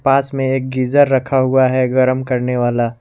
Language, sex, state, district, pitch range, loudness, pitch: Hindi, male, Jharkhand, Garhwa, 125-135 Hz, -15 LUFS, 130 Hz